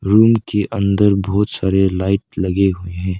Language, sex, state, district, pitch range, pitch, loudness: Hindi, male, Arunachal Pradesh, Lower Dibang Valley, 95-105 Hz, 100 Hz, -16 LUFS